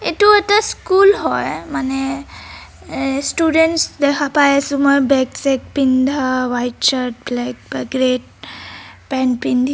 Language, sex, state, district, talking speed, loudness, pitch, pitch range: Assamese, female, Assam, Kamrup Metropolitan, 135 wpm, -16 LUFS, 275 Hz, 255-295 Hz